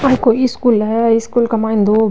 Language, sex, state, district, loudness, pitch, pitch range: Marwari, female, Rajasthan, Nagaur, -14 LUFS, 230 Hz, 220-245 Hz